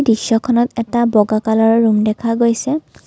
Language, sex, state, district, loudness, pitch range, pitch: Assamese, female, Assam, Kamrup Metropolitan, -15 LUFS, 220-235 Hz, 230 Hz